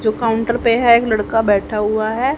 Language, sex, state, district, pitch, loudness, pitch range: Hindi, female, Haryana, Rohtak, 225 Hz, -16 LUFS, 215-235 Hz